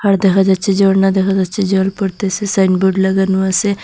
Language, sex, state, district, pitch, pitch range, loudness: Bengali, female, Assam, Hailakandi, 195 Hz, 190-195 Hz, -14 LUFS